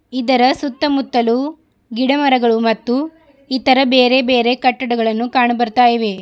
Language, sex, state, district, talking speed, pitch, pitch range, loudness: Kannada, female, Karnataka, Bidar, 125 wpm, 255 Hz, 240-270 Hz, -15 LUFS